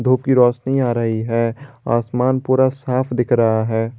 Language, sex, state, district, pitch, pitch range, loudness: Hindi, male, Jharkhand, Garhwa, 125 Hz, 115-130 Hz, -18 LUFS